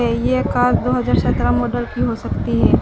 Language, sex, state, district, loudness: Hindi, female, West Bengal, Alipurduar, -18 LUFS